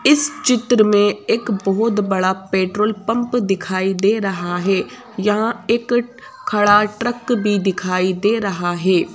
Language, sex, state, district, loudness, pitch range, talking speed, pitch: Hindi, female, Madhya Pradesh, Bhopal, -18 LUFS, 190-235 Hz, 140 wpm, 210 Hz